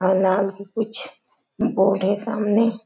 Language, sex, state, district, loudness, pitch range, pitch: Chhattisgarhi, female, Chhattisgarh, Jashpur, -21 LUFS, 195-225 Hz, 205 Hz